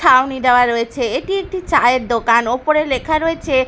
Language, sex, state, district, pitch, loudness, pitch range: Bengali, female, Bihar, Katihar, 260 Hz, -16 LUFS, 240-310 Hz